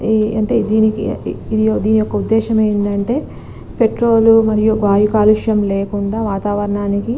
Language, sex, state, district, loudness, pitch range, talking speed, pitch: Telugu, female, Telangana, Nalgonda, -15 LUFS, 205-220 Hz, 110 wpm, 215 Hz